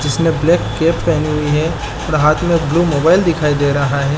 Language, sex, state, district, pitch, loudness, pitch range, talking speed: Hindi, male, Chhattisgarh, Balrampur, 155 Hz, -15 LUFS, 150-165 Hz, 230 wpm